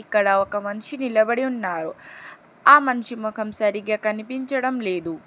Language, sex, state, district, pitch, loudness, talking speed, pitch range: Telugu, female, Telangana, Hyderabad, 215 Hz, -21 LUFS, 125 wpm, 205-255 Hz